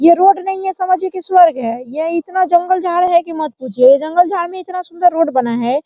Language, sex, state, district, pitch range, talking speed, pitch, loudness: Hindi, female, Bihar, Araria, 310-370 Hz, 245 wpm, 345 Hz, -14 LUFS